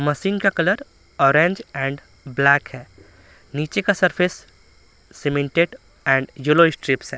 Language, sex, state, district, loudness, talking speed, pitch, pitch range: Hindi, male, Bihar, Patna, -20 LUFS, 125 wpm, 145 Hz, 130-175 Hz